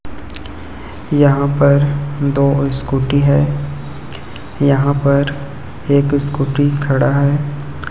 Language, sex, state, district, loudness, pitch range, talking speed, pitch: Hindi, male, Chhattisgarh, Raipur, -15 LUFS, 100-145 Hz, 85 wpm, 140 Hz